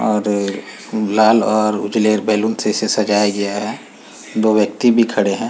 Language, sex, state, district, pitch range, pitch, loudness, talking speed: Hindi, male, Uttar Pradesh, Muzaffarnagar, 105-110 Hz, 105 Hz, -16 LUFS, 175 wpm